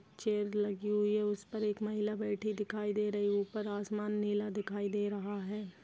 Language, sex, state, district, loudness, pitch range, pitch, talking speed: Hindi, female, Bihar, Muzaffarpur, -35 LUFS, 205-210 Hz, 210 Hz, 195 wpm